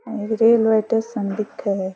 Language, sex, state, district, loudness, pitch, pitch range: Rajasthani, female, Rajasthan, Churu, -20 LUFS, 220 Hz, 205-225 Hz